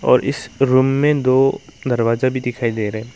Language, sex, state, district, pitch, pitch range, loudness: Hindi, male, Arunachal Pradesh, Longding, 130 Hz, 115-135 Hz, -17 LUFS